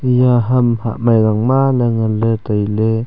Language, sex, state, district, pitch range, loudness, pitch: Wancho, male, Arunachal Pradesh, Longding, 110-125 Hz, -15 LUFS, 115 Hz